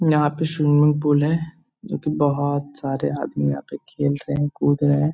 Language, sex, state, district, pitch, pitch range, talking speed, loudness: Hindi, male, Uttar Pradesh, Etah, 145 Hz, 145-150 Hz, 210 wpm, -21 LUFS